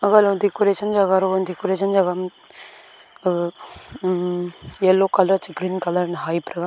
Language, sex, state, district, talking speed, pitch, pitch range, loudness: Wancho, female, Arunachal Pradesh, Longding, 160 wpm, 185 Hz, 180-195 Hz, -20 LUFS